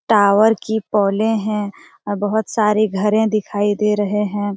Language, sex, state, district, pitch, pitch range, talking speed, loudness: Hindi, female, Jharkhand, Jamtara, 210 Hz, 205-220 Hz, 170 wpm, -17 LUFS